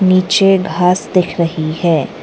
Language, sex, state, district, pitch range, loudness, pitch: Hindi, female, Arunachal Pradesh, Lower Dibang Valley, 165-185 Hz, -14 LUFS, 180 Hz